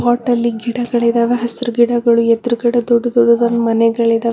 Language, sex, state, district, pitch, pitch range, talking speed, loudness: Kannada, female, Karnataka, Bangalore, 235 Hz, 235-240 Hz, 140 wpm, -14 LUFS